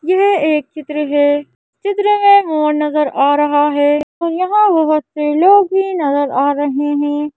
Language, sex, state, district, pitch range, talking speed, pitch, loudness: Hindi, female, Madhya Pradesh, Bhopal, 290-370 Hz, 170 wpm, 300 Hz, -14 LUFS